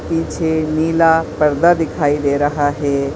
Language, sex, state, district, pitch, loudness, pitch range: Hindi, female, Maharashtra, Aurangabad, 155 Hz, -16 LUFS, 145-165 Hz